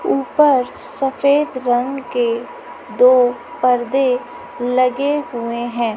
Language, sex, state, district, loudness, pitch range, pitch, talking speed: Hindi, female, Chhattisgarh, Raipur, -17 LUFS, 245-275 Hz, 255 Hz, 90 wpm